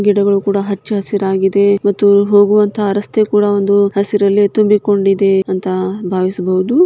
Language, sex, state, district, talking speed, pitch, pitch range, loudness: Kannada, female, Karnataka, Shimoga, 115 wpm, 200 Hz, 195-205 Hz, -13 LUFS